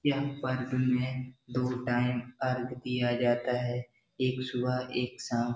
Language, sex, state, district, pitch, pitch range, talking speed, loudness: Hindi, male, Bihar, Jahanabad, 125 Hz, 125-130 Hz, 150 wpm, -32 LUFS